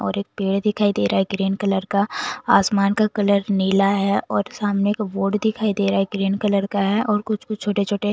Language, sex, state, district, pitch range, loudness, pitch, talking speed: Hindi, female, Bihar, Patna, 195-210 Hz, -20 LUFS, 200 Hz, 220 wpm